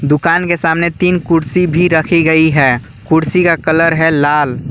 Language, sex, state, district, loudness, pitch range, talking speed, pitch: Hindi, male, Jharkhand, Garhwa, -12 LUFS, 150-170 Hz, 180 wpm, 160 Hz